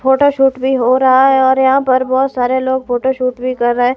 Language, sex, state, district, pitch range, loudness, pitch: Hindi, female, Himachal Pradesh, Shimla, 255-265 Hz, -13 LUFS, 260 Hz